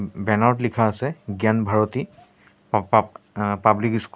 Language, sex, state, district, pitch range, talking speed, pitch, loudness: Assamese, male, Assam, Sonitpur, 105-115 Hz, 175 wpm, 110 Hz, -21 LUFS